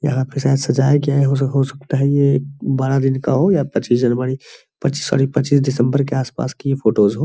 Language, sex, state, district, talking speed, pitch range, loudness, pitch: Hindi, male, Bihar, Araria, 215 wpm, 130-140 Hz, -17 LUFS, 135 Hz